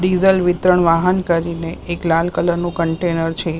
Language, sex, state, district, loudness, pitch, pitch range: Gujarati, female, Maharashtra, Mumbai Suburban, -17 LUFS, 170 Hz, 165-180 Hz